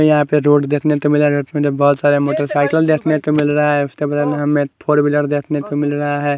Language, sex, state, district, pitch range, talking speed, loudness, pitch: Hindi, male, Haryana, Charkhi Dadri, 145-150 Hz, 205 wpm, -16 LUFS, 145 Hz